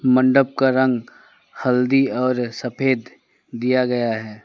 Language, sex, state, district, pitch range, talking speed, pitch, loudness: Hindi, male, West Bengal, Alipurduar, 120-130 Hz, 120 wpm, 125 Hz, -19 LUFS